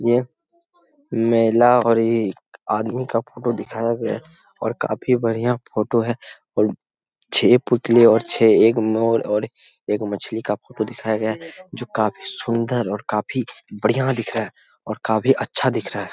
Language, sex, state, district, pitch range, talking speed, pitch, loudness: Hindi, male, Jharkhand, Jamtara, 110-120 Hz, 165 wpm, 115 Hz, -20 LUFS